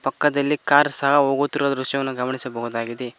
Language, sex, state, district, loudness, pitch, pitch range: Kannada, male, Karnataka, Koppal, -20 LUFS, 135 Hz, 125-145 Hz